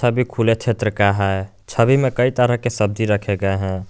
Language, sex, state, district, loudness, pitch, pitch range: Hindi, male, Jharkhand, Garhwa, -19 LUFS, 110 Hz, 100-120 Hz